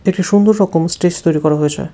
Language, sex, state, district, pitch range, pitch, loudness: Bengali, male, West Bengal, Cooch Behar, 160-195 Hz, 175 Hz, -14 LUFS